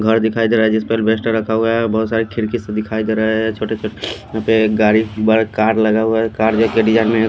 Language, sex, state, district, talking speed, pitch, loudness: Hindi, male, Haryana, Charkhi Dadri, 255 wpm, 110 Hz, -16 LUFS